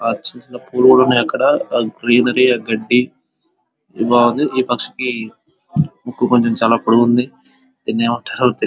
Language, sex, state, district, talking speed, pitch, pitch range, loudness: Telugu, male, Telangana, Nalgonda, 125 wpm, 125 Hz, 120-125 Hz, -15 LUFS